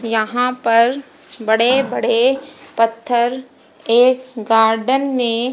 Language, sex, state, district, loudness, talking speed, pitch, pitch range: Hindi, female, Haryana, Jhajjar, -16 LUFS, 85 wpm, 245 Hz, 230-260 Hz